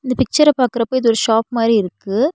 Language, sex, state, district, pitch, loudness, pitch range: Tamil, female, Tamil Nadu, Nilgiris, 235 Hz, -16 LUFS, 225-260 Hz